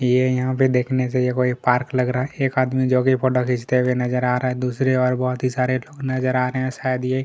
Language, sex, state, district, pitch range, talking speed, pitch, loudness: Hindi, male, Chhattisgarh, Kabirdham, 125-130 Hz, 275 wpm, 130 Hz, -20 LUFS